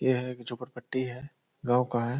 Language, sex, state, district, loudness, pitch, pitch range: Hindi, male, Bihar, Purnia, -31 LUFS, 125 Hz, 125-130 Hz